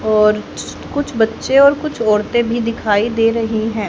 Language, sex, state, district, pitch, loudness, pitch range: Hindi, female, Haryana, Jhajjar, 225 Hz, -16 LUFS, 215-240 Hz